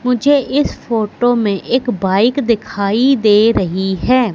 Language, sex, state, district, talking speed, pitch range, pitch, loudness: Hindi, female, Madhya Pradesh, Katni, 140 wpm, 205-255 Hz, 230 Hz, -14 LUFS